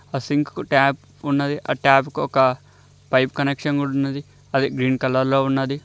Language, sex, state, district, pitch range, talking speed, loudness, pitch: Telugu, male, Telangana, Mahabubabad, 130-140 Hz, 185 wpm, -20 LUFS, 135 Hz